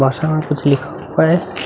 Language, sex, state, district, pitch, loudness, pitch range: Hindi, male, Bihar, Vaishali, 155 Hz, -17 LUFS, 140-160 Hz